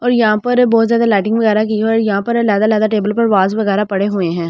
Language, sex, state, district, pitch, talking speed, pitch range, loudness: Hindi, female, Delhi, New Delhi, 215 Hz, 200 wpm, 205-230 Hz, -14 LUFS